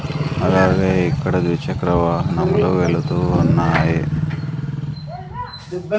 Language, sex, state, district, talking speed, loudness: Telugu, male, Andhra Pradesh, Sri Satya Sai, 60 wpm, -18 LUFS